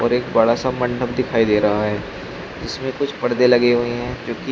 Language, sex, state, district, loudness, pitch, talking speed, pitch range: Hindi, male, Uttar Pradesh, Shamli, -19 LUFS, 120 Hz, 240 wpm, 115-125 Hz